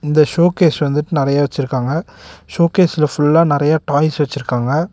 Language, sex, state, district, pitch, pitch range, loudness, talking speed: Tamil, male, Tamil Nadu, Nilgiris, 150 Hz, 145-160 Hz, -15 LUFS, 120 wpm